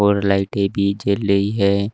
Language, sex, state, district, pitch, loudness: Hindi, male, Uttar Pradesh, Shamli, 100 Hz, -18 LUFS